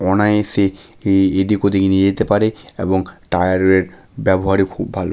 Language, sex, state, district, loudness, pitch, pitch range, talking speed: Bengali, male, West Bengal, Malda, -16 LUFS, 95 Hz, 95-105 Hz, 165 wpm